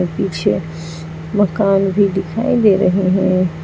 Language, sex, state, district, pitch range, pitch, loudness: Hindi, female, Uttar Pradesh, Saharanpur, 170-200 Hz, 190 Hz, -16 LUFS